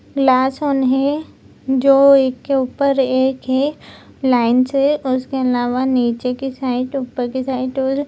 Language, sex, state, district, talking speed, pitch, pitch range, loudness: Hindi, female, Bihar, Jamui, 150 wpm, 265 Hz, 255-275 Hz, -17 LUFS